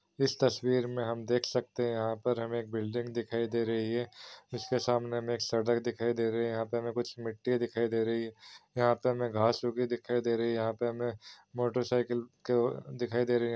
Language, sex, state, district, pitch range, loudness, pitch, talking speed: Hindi, male, Chhattisgarh, Rajnandgaon, 115-120 Hz, -32 LUFS, 120 Hz, 225 wpm